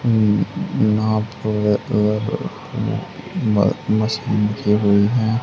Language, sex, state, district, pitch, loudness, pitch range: Hindi, male, Haryana, Charkhi Dadri, 105 Hz, -19 LUFS, 105-110 Hz